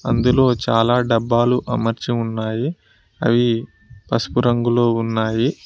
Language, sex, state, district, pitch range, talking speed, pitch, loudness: Telugu, male, Telangana, Mahabubabad, 115-120 Hz, 95 wpm, 115 Hz, -19 LUFS